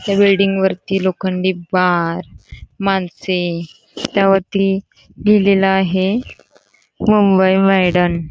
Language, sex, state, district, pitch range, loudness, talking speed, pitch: Marathi, female, Karnataka, Belgaum, 180-195 Hz, -15 LUFS, 70 wpm, 190 Hz